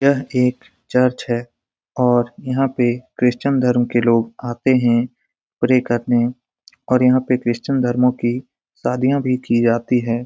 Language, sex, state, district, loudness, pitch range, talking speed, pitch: Hindi, male, Bihar, Lakhisarai, -18 LUFS, 120-130 Hz, 150 wpm, 125 Hz